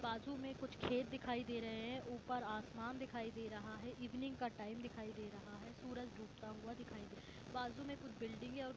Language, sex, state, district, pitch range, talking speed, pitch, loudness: Hindi, female, Jharkhand, Jamtara, 225-255 Hz, 225 wpm, 240 Hz, -48 LUFS